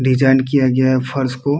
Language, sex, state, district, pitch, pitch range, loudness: Hindi, male, Uttar Pradesh, Muzaffarnagar, 130 Hz, 130-135 Hz, -15 LUFS